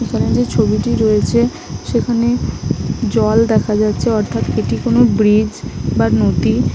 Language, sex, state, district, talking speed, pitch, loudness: Bengali, female, West Bengal, Malda, 135 wpm, 215 Hz, -15 LUFS